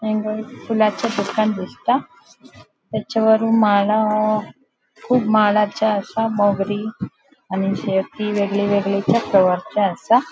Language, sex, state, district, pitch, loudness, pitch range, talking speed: Konkani, female, Goa, North and South Goa, 210 Hz, -19 LUFS, 200-220 Hz, 95 wpm